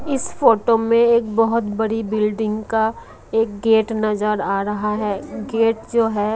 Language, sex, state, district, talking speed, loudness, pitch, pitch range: Hindi, female, Odisha, Malkangiri, 160 wpm, -19 LUFS, 220 Hz, 210-225 Hz